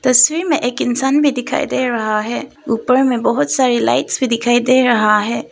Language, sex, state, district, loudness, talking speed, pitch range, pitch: Hindi, female, Arunachal Pradesh, Papum Pare, -15 LUFS, 205 wpm, 235-260 Hz, 250 Hz